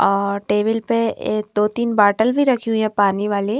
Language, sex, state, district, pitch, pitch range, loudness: Hindi, female, Himachal Pradesh, Shimla, 215 Hz, 205-230 Hz, -18 LUFS